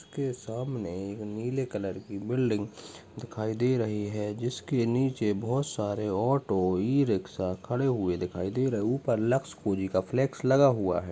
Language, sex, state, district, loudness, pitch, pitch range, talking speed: Hindi, male, Chhattisgarh, Bastar, -29 LUFS, 110 Hz, 100-130 Hz, 165 wpm